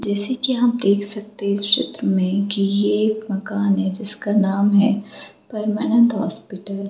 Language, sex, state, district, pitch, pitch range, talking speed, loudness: Hindi, female, Jharkhand, Jamtara, 205 Hz, 200-215 Hz, 155 wpm, -19 LUFS